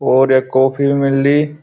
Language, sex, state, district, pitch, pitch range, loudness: Garhwali, male, Uttarakhand, Uttarkashi, 135 Hz, 130-140 Hz, -14 LUFS